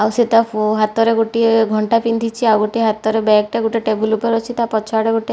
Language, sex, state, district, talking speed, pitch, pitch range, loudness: Odia, female, Odisha, Malkangiri, 215 wpm, 225 Hz, 215-230 Hz, -16 LUFS